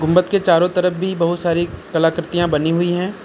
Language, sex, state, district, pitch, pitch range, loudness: Hindi, male, Uttar Pradesh, Lucknow, 175 Hz, 170-180 Hz, -17 LUFS